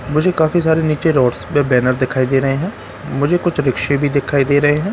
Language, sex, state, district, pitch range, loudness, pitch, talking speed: Hindi, male, Bihar, Katihar, 135-160 Hz, -16 LUFS, 145 Hz, 230 wpm